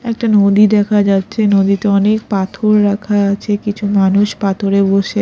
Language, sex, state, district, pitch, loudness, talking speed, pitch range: Bengali, female, Odisha, Khordha, 205 Hz, -13 LUFS, 150 wpm, 195-210 Hz